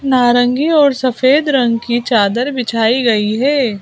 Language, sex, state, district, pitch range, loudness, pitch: Hindi, female, Madhya Pradesh, Bhopal, 230-270 Hz, -13 LUFS, 245 Hz